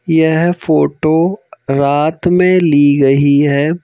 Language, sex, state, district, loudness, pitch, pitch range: Hindi, male, Madhya Pradesh, Bhopal, -12 LUFS, 155 Hz, 145-170 Hz